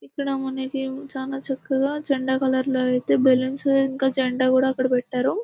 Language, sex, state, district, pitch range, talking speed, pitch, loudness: Telugu, female, Telangana, Nalgonda, 260-270 Hz, 155 wpm, 265 Hz, -22 LUFS